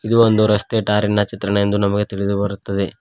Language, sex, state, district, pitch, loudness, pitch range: Kannada, male, Karnataka, Koppal, 105 Hz, -18 LUFS, 100-110 Hz